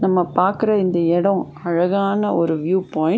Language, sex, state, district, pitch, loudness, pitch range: Tamil, female, Tamil Nadu, Nilgiris, 185 Hz, -19 LUFS, 170-195 Hz